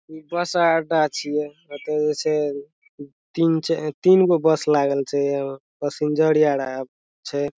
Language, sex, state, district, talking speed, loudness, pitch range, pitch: Maithili, male, Bihar, Madhepura, 125 wpm, -21 LUFS, 145-160 Hz, 150 Hz